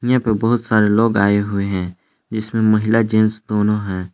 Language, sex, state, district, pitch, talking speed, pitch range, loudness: Hindi, male, Jharkhand, Palamu, 110 Hz, 190 wpm, 100-110 Hz, -17 LUFS